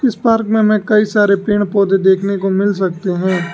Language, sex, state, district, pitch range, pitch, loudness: Hindi, male, Arunachal Pradesh, Lower Dibang Valley, 190-215 Hz, 200 Hz, -14 LUFS